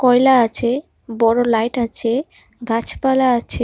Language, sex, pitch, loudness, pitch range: Bengali, male, 240 Hz, -16 LUFS, 230-260 Hz